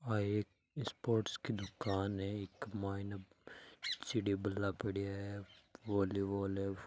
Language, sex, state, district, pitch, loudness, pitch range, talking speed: Marwari, male, Rajasthan, Nagaur, 100 Hz, -40 LUFS, 100-105 Hz, 140 wpm